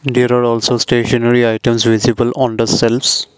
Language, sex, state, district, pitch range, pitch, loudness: English, male, Assam, Kamrup Metropolitan, 115-125 Hz, 120 Hz, -13 LUFS